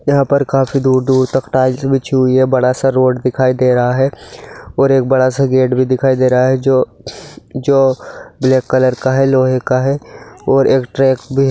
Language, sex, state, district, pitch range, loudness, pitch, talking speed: Hindi, male, Bihar, Sitamarhi, 130-135 Hz, -13 LUFS, 130 Hz, 210 wpm